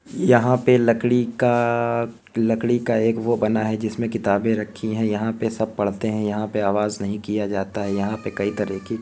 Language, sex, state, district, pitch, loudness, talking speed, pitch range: Hindi, male, Uttar Pradesh, Hamirpur, 110 Hz, -22 LUFS, 215 wpm, 105-115 Hz